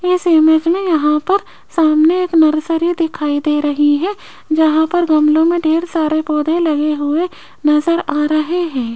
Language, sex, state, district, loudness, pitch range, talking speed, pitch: Hindi, female, Rajasthan, Jaipur, -15 LUFS, 300-340 Hz, 165 wpm, 315 Hz